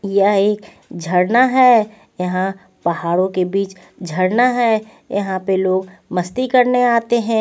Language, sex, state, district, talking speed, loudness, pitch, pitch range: Hindi, female, Punjab, Pathankot, 135 wpm, -17 LUFS, 195 Hz, 185-235 Hz